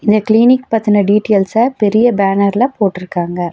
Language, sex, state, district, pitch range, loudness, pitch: Tamil, female, Tamil Nadu, Nilgiris, 200-225 Hz, -13 LUFS, 210 Hz